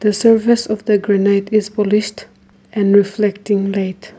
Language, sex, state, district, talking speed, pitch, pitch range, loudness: English, female, Nagaland, Kohima, 145 wpm, 210 Hz, 200-215 Hz, -15 LUFS